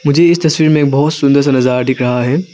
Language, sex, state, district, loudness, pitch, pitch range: Hindi, male, Arunachal Pradesh, Lower Dibang Valley, -12 LUFS, 145 Hz, 130-155 Hz